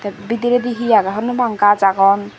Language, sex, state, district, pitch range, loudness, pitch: Chakma, female, Tripura, Dhalai, 200-240 Hz, -15 LUFS, 210 Hz